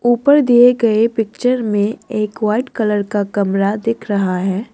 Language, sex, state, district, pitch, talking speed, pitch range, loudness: Hindi, female, Assam, Kamrup Metropolitan, 215 Hz, 165 wpm, 205-240 Hz, -16 LUFS